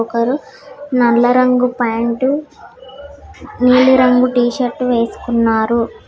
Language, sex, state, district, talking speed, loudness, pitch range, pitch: Telugu, female, Telangana, Hyderabad, 70 wpm, -14 LUFS, 235-260 Hz, 250 Hz